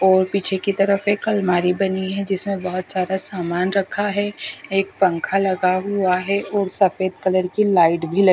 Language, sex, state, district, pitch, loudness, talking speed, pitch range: Hindi, female, Haryana, Charkhi Dadri, 190 Hz, -20 LUFS, 185 wpm, 185-200 Hz